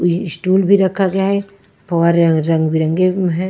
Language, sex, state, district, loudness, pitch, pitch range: Hindi, female, Punjab, Pathankot, -15 LUFS, 180 Hz, 170-190 Hz